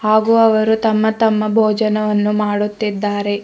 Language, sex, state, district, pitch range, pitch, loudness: Kannada, female, Karnataka, Bidar, 210-220 Hz, 215 Hz, -15 LUFS